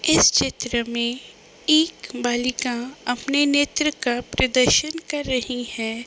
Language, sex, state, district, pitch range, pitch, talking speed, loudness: Hindi, female, Uttar Pradesh, Deoria, 240-295 Hz, 250 Hz, 120 wpm, -21 LUFS